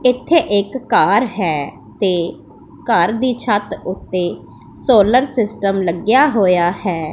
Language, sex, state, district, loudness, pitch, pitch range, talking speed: Punjabi, female, Punjab, Pathankot, -16 LUFS, 205 Hz, 180-250 Hz, 120 wpm